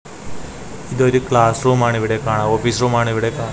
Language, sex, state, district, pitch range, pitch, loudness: Malayalam, male, Kerala, Kasaragod, 110-125 Hz, 115 Hz, -16 LUFS